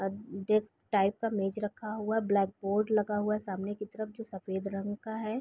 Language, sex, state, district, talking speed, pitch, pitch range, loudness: Hindi, female, Chhattisgarh, Raigarh, 210 wpm, 210 Hz, 195-215 Hz, -32 LUFS